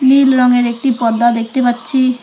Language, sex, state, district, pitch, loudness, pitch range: Bengali, female, West Bengal, Alipurduar, 245 Hz, -13 LUFS, 240-260 Hz